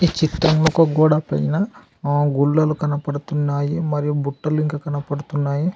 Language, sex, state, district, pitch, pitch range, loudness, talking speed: Telugu, male, Telangana, Adilabad, 150 Hz, 145-155 Hz, -20 LUFS, 115 wpm